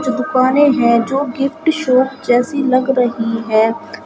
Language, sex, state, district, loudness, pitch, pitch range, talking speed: Hindi, female, Uttar Pradesh, Shamli, -15 LUFS, 255 Hz, 235-275 Hz, 150 wpm